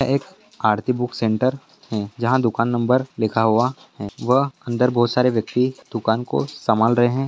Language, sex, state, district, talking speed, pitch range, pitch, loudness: Hindi, male, Bihar, Jahanabad, 175 wpm, 115-130 Hz, 120 Hz, -20 LUFS